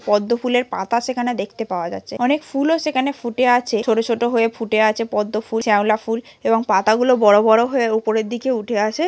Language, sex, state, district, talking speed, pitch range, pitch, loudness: Bengali, female, West Bengal, Malda, 205 wpm, 215-245 Hz, 230 Hz, -18 LUFS